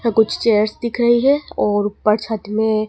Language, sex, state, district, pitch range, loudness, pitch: Hindi, female, Madhya Pradesh, Dhar, 215-235 Hz, -17 LUFS, 220 Hz